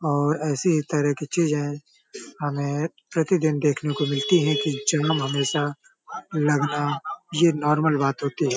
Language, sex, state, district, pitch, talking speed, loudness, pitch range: Hindi, male, Uttar Pradesh, Hamirpur, 150 Hz, 145 wpm, -23 LUFS, 145-160 Hz